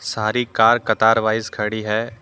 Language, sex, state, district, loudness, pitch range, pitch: Hindi, male, Jharkhand, Deoghar, -18 LUFS, 110-115 Hz, 110 Hz